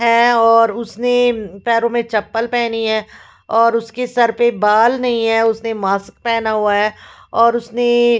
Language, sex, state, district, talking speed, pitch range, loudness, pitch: Hindi, female, Punjab, Fazilka, 170 wpm, 220-235 Hz, -16 LUFS, 230 Hz